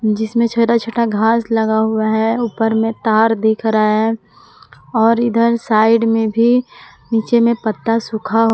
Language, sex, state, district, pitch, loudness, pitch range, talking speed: Hindi, female, Jharkhand, Palamu, 225 Hz, -15 LUFS, 220-230 Hz, 155 wpm